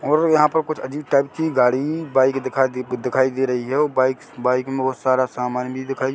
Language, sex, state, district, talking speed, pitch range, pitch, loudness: Hindi, male, Chhattisgarh, Bilaspur, 205 wpm, 130-145 Hz, 130 Hz, -20 LUFS